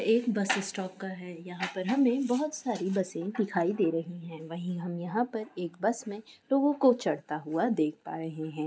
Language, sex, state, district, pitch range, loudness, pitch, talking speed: Hindi, female, Chhattisgarh, Korba, 170-225 Hz, -30 LUFS, 190 Hz, 210 wpm